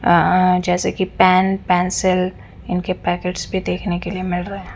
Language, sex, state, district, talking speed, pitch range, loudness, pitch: Hindi, female, Punjab, Fazilka, 175 wpm, 180-185 Hz, -18 LUFS, 185 Hz